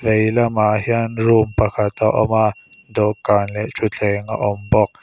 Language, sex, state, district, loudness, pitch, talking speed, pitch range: Mizo, male, Mizoram, Aizawl, -18 LUFS, 110 Hz, 155 wpm, 105-110 Hz